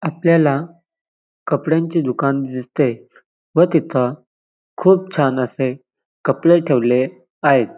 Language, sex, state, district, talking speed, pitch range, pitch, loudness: Marathi, male, Maharashtra, Dhule, 90 wpm, 130-170 Hz, 145 Hz, -17 LUFS